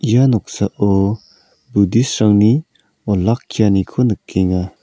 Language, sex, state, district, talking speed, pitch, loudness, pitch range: Garo, male, Meghalaya, South Garo Hills, 60 wpm, 105 Hz, -16 LUFS, 100-120 Hz